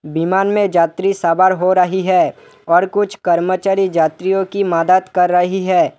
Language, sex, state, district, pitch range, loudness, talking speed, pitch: Hindi, male, West Bengal, Alipurduar, 175-195 Hz, -15 LUFS, 160 wpm, 185 Hz